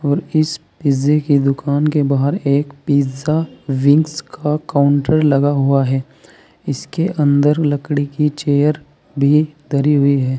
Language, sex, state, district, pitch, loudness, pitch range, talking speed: Hindi, male, Uttar Pradesh, Saharanpur, 145 Hz, -16 LUFS, 140-150 Hz, 140 wpm